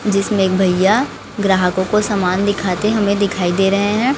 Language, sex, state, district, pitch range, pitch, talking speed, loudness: Hindi, female, Chhattisgarh, Raipur, 190-205 Hz, 200 Hz, 170 wpm, -16 LUFS